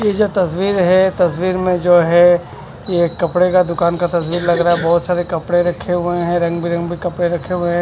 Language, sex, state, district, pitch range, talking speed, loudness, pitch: Hindi, male, Punjab, Fazilka, 170-180 Hz, 230 wpm, -15 LUFS, 175 Hz